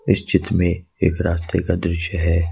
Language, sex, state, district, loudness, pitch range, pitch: Hindi, male, Jharkhand, Ranchi, -20 LUFS, 85-95 Hz, 90 Hz